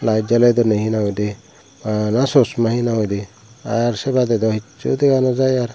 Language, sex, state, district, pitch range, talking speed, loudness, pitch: Chakma, male, Tripura, Dhalai, 110-130 Hz, 220 wpm, -18 LUFS, 115 Hz